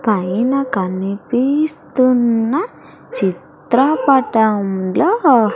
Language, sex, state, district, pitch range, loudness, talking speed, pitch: Telugu, female, Andhra Pradesh, Sri Satya Sai, 200-275 Hz, -16 LUFS, 45 wpm, 240 Hz